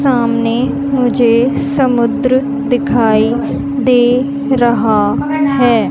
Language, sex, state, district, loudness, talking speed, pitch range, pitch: Hindi, female, Haryana, Rohtak, -13 LUFS, 70 wpm, 240-275 Hz, 255 Hz